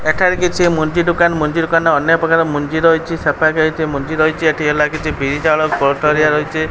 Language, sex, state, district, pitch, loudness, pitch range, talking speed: Odia, male, Odisha, Khordha, 155 Hz, -14 LUFS, 150-165 Hz, 215 wpm